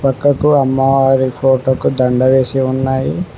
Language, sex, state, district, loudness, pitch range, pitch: Telugu, male, Telangana, Mahabubabad, -13 LUFS, 130-135 Hz, 130 Hz